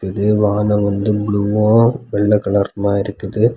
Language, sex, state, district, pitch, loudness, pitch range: Tamil, male, Tamil Nadu, Kanyakumari, 105 Hz, -16 LUFS, 100-105 Hz